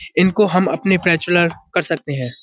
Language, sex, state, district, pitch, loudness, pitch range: Hindi, male, Uttar Pradesh, Budaun, 175 Hz, -17 LUFS, 165-185 Hz